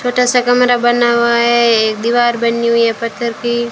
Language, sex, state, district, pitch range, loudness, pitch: Hindi, female, Rajasthan, Jaisalmer, 235-240 Hz, -13 LUFS, 235 Hz